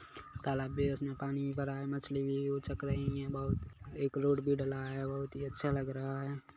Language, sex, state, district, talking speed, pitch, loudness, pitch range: Hindi, male, Chhattisgarh, Kabirdham, 210 wpm, 140 Hz, -37 LUFS, 135-140 Hz